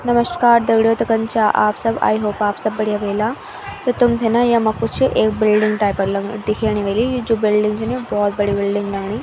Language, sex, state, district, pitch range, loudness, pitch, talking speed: Garhwali, female, Uttarakhand, Tehri Garhwal, 210-230 Hz, -17 LUFS, 215 Hz, 215 wpm